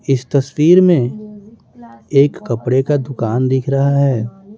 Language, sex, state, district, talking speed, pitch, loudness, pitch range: Hindi, male, Bihar, West Champaran, 130 wpm, 135 Hz, -15 LUFS, 125-155 Hz